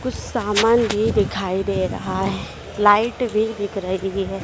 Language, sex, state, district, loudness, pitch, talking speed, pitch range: Hindi, female, Madhya Pradesh, Dhar, -20 LUFS, 210 Hz, 160 wpm, 195-225 Hz